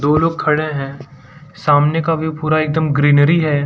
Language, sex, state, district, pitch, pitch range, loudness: Hindi, male, Gujarat, Valsad, 150 Hz, 145-160 Hz, -15 LUFS